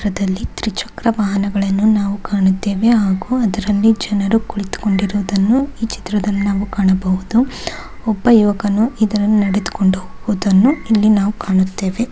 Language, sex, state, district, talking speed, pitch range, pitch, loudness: Kannada, female, Karnataka, Bellary, 105 wpm, 195-220 Hz, 205 Hz, -16 LUFS